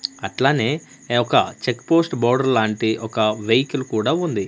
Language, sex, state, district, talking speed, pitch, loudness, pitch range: Telugu, male, Andhra Pradesh, Manyam, 145 wpm, 120 Hz, -20 LUFS, 110-135 Hz